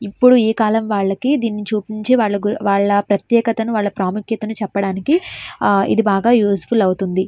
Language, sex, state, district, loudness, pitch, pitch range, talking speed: Telugu, female, Andhra Pradesh, Srikakulam, -17 LUFS, 210 Hz, 200-225 Hz, 130 wpm